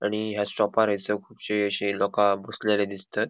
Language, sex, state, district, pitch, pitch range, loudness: Konkani, male, Goa, North and South Goa, 105 Hz, 100-105 Hz, -26 LUFS